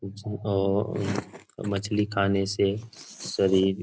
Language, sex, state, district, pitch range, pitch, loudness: Hindi, male, Bihar, Jahanabad, 95-105 Hz, 100 Hz, -27 LUFS